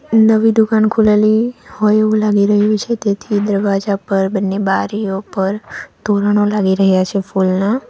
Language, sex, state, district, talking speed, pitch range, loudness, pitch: Gujarati, female, Gujarat, Valsad, 145 wpm, 195-215 Hz, -15 LUFS, 205 Hz